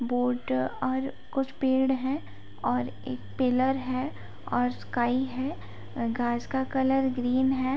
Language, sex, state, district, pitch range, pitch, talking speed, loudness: Hindi, female, Bihar, Saharsa, 240-265 Hz, 255 Hz, 130 wpm, -28 LUFS